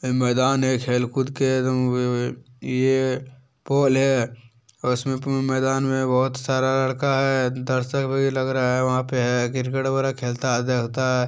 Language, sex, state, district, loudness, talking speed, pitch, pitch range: Hindi, male, Bihar, Jamui, -22 LUFS, 180 wpm, 130 Hz, 125-135 Hz